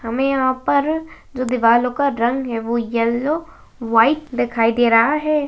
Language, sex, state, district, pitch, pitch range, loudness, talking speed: Hindi, female, Uttarakhand, Tehri Garhwal, 250 Hz, 230-285 Hz, -18 LUFS, 165 wpm